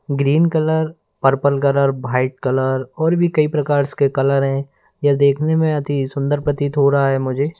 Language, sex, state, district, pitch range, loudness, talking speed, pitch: Hindi, male, Madhya Pradesh, Bhopal, 135-150 Hz, -17 LUFS, 180 wpm, 140 Hz